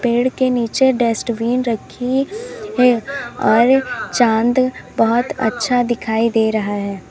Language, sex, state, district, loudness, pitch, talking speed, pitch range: Hindi, female, Uttar Pradesh, Lalitpur, -17 LUFS, 240 Hz, 120 wpm, 225-255 Hz